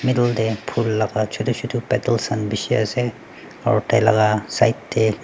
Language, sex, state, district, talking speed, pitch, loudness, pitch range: Nagamese, male, Nagaland, Dimapur, 170 wpm, 110 Hz, -20 LUFS, 110-120 Hz